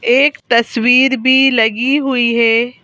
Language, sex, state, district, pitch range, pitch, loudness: Hindi, female, Madhya Pradesh, Bhopal, 235-265 Hz, 250 Hz, -12 LUFS